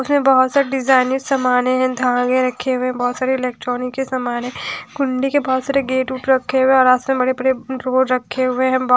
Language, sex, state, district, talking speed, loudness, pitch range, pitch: Hindi, female, Haryana, Jhajjar, 240 wpm, -17 LUFS, 255-265 Hz, 260 Hz